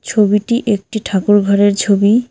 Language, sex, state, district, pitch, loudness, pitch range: Bengali, female, West Bengal, Cooch Behar, 205 Hz, -13 LUFS, 200-215 Hz